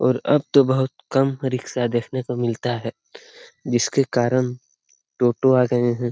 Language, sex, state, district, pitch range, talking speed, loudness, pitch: Hindi, male, Bihar, Lakhisarai, 120-130 Hz, 155 wpm, -21 LUFS, 125 Hz